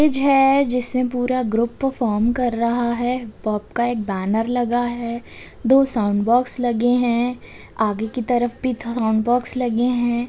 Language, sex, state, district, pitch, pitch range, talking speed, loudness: Hindi, female, Bihar, Begusarai, 240 Hz, 235-250 Hz, 170 wpm, -19 LUFS